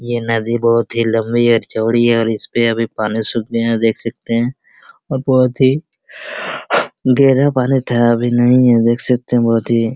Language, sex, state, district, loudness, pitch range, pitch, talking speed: Hindi, male, Bihar, Araria, -15 LUFS, 115-125 Hz, 120 Hz, 200 wpm